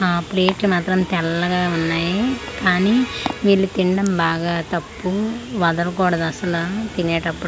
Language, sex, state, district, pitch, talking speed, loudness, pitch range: Telugu, female, Andhra Pradesh, Manyam, 180 Hz, 105 wpm, -19 LUFS, 170-195 Hz